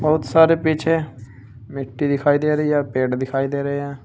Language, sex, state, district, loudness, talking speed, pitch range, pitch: Hindi, male, Uttar Pradesh, Saharanpur, -19 LUFS, 205 wpm, 130-155 Hz, 140 Hz